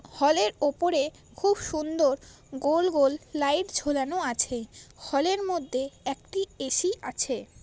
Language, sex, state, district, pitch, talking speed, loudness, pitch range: Bengali, female, West Bengal, Paschim Medinipur, 290 Hz, 110 wpm, -27 LUFS, 270-350 Hz